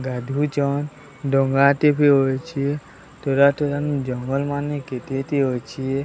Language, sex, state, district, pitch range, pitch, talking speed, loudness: Odia, male, Odisha, Sambalpur, 135-145 Hz, 140 Hz, 120 wpm, -21 LUFS